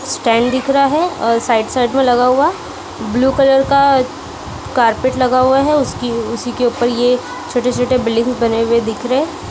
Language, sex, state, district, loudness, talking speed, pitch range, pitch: Hindi, female, Punjab, Kapurthala, -14 LUFS, 175 wpm, 235-270 Hz, 250 Hz